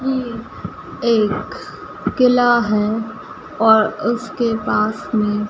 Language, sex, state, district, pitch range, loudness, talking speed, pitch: Hindi, female, Madhya Pradesh, Dhar, 215-240 Hz, -18 LUFS, 85 wpm, 220 Hz